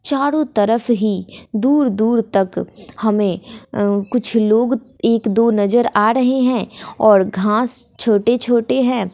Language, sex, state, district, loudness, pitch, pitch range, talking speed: Hindi, female, Bihar, West Champaran, -16 LUFS, 230 Hz, 210-245 Hz, 130 wpm